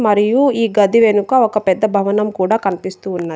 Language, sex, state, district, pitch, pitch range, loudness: Telugu, female, Telangana, Adilabad, 210 Hz, 195-225 Hz, -15 LUFS